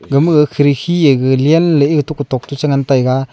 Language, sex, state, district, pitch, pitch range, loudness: Wancho, male, Arunachal Pradesh, Longding, 145 Hz, 135-150 Hz, -13 LUFS